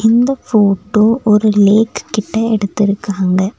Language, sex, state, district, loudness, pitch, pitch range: Tamil, female, Tamil Nadu, Nilgiris, -13 LUFS, 215 Hz, 200-225 Hz